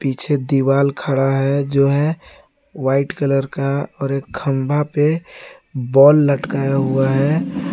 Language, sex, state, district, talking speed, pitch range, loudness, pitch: Hindi, male, Jharkhand, Garhwa, 130 wpm, 135-145 Hz, -17 LUFS, 140 Hz